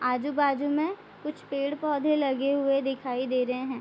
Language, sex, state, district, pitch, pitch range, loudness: Hindi, female, Bihar, Vaishali, 275 Hz, 260-290 Hz, -28 LUFS